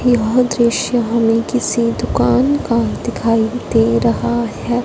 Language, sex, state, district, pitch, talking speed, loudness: Hindi, female, Punjab, Fazilka, 230 Hz, 125 wpm, -16 LUFS